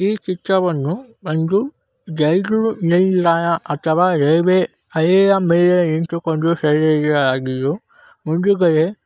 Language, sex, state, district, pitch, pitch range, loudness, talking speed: Kannada, male, Karnataka, Raichur, 170 Hz, 155-185 Hz, -17 LUFS, 75 wpm